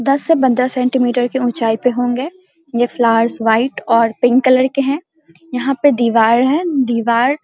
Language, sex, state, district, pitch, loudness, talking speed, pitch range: Hindi, female, Bihar, Samastipur, 250 Hz, -15 LUFS, 180 wpm, 235-275 Hz